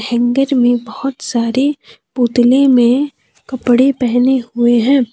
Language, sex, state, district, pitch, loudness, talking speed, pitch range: Hindi, female, Jharkhand, Deoghar, 245 Hz, -13 LUFS, 115 wpm, 240-270 Hz